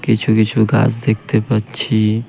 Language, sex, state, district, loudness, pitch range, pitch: Bengali, male, West Bengal, Cooch Behar, -16 LUFS, 110-125 Hz, 110 Hz